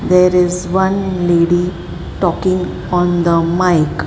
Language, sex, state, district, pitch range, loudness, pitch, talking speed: English, male, Maharashtra, Mumbai Suburban, 175-180 Hz, -14 LUFS, 180 Hz, 120 wpm